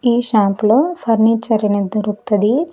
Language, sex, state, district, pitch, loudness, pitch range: Telugu, female, Andhra Pradesh, Sri Satya Sai, 220 Hz, -15 LUFS, 210-240 Hz